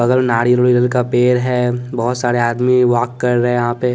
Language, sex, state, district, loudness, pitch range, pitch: Hindi, male, Bihar, West Champaran, -15 LUFS, 120-125 Hz, 125 Hz